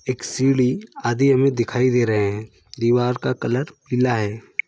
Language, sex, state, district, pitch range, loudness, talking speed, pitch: Hindi, male, Chhattisgarh, Rajnandgaon, 115-130 Hz, -20 LUFS, 165 wpm, 125 Hz